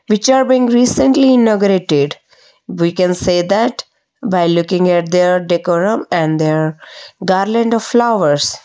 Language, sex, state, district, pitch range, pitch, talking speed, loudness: English, female, Odisha, Malkangiri, 170-235 Hz, 185 Hz, 130 wpm, -13 LUFS